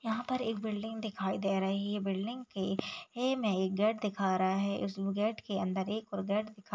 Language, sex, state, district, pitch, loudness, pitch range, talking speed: Hindi, female, Chhattisgarh, Raigarh, 205 Hz, -34 LUFS, 195-220 Hz, 220 wpm